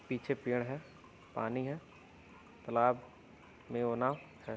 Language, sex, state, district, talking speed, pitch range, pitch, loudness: Hindi, male, Uttar Pradesh, Varanasi, 105 wpm, 120-135 Hz, 125 Hz, -37 LUFS